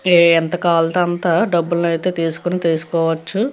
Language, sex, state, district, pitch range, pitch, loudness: Telugu, female, Andhra Pradesh, Guntur, 165-180 Hz, 170 Hz, -17 LUFS